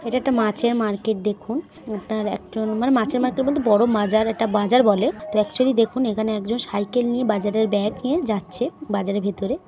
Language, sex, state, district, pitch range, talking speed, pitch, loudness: Bengali, female, West Bengal, Purulia, 210-245 Hz, 160 wpm, 220 Hz, -21 LUFS